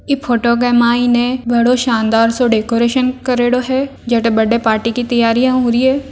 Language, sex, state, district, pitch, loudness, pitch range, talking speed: Marwari, female, Rajasthan, Churu, 240 Hz, -14 LUFS, 235-255 Hz, 175 wpm